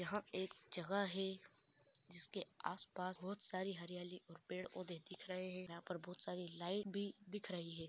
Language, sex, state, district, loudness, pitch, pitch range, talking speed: Hindi, female, Bihar, Saran, -47 LUFS, 185 Hz, 175-190 Hz, 185 wpm